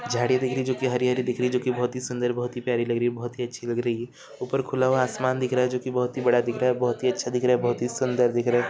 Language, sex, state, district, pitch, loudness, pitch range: Bhojpuri, male, Bihar, Saran, 125 Hz, -25 LUFS, 120-125 Hz